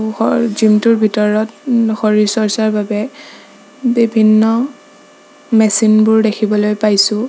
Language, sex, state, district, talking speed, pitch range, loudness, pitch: Assamese, female, Assam, Sonitpur, 90 wpm, 215-230 Hz, -13 LUFS, 220 Hz